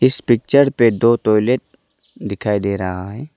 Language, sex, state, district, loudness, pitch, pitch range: Hindi, male, Arunachal Pradesh, Lower Dibang Valley, -16 LUFS, 115 Hz, 100-130 Hz